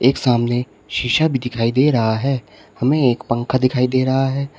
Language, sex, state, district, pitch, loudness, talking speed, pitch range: Hindi, male, Uttar Pradesh, Shamli, 130 Hz, -18 LUFS, 195 wpm, 120-135 Hz